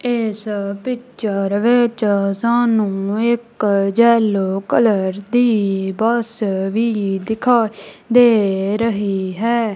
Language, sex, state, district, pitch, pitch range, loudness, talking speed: Punjabi, female, Punjab, Kapurthala, 215 Hz, 200-235 Hz, -17 LUFS, 85 wpm